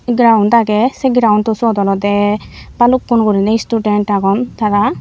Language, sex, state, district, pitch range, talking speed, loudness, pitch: Chakma, female, Tripura, Unakoti, 205-235 Hz, 130 wpm, -13 LUFS, 220 Hz